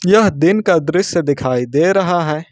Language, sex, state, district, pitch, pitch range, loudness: Hindi, male, Jharkhand, Ranchi, 170 Hz, 150-190 Hz, -15 LUFS